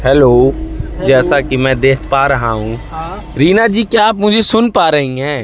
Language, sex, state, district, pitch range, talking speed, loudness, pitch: Hindi, male, Madhya Pradesh, Katni, 130-210 Hz, 185 wpm, -11 LUFS, 140 Hz